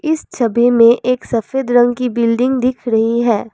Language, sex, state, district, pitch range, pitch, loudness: Hindi, female, Assam, Kamrup Metropolitan, 230-255 Hz, 245 Hz, -14 LUFS